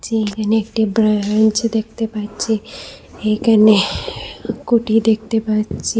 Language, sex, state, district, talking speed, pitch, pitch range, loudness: Bengali, female, Assam, Hailakandi, 90 wpm, 220 Hz, 215-225 Hz, -17 LUFS